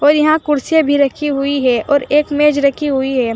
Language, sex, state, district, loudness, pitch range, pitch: Hindi, female, Uttar Pradesh, Saharanpur, -14 LUFS, 270-295 Hz, 285 Hz